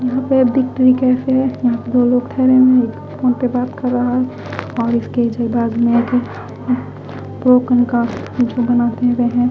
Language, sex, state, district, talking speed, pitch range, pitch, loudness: Hindi, female, Haryana, Charkhi Dadri, 190 wpm, 235-255 Hz, 245 Hz, -16 LUFS